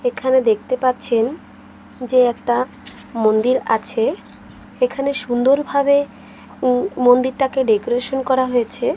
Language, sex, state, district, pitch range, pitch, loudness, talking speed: Bengali, female, Odisha, Malkangiri, 235-265 Hz, 250 Hz, -18 LUFS, 95 wpm